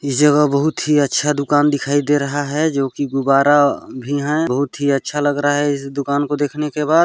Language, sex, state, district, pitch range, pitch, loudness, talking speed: Chhattisgarhi, male, Chhattisgarh, Balrampur, 140-150 Hz, 145 Hz, -17 LUFS, 240 wpm